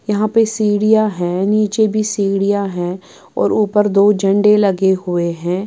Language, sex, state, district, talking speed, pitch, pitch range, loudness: Hindi, female, Bihar, Patna, 160 wpm, 205 Hz, 190-215 Hz, -15 LUFS